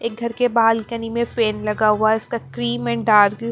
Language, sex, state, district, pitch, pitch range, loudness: Hindi, female, Bihar, Patna, 225 Hz, 210-235 Hz, -19 LUFS